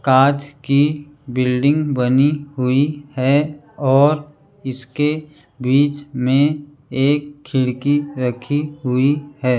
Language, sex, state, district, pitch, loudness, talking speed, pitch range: Hindi, male, Madhya Pradesh, Bhopal, 145 Hz, -18 LUFS, 95 wpm, 130-145 Hz